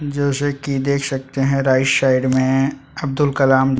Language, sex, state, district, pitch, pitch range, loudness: Hindi, male, Chhattisgarh, Sukma, 135 Hz, 130-140 Hz, -18 LUFS